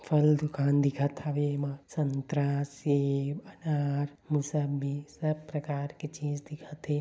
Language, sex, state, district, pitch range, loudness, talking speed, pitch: Chhattisgarhi, male, Chhattisgarh, Bilaspur, 140-150 Hz, -31 LUFS, 130 wpm, 145 Hz